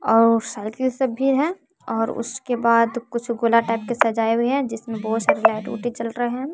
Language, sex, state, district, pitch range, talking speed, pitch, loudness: Hindi, male, Bihar, West Champaran, 225-255 Hz, 210 wpm, 235 Hz, -21 LUFS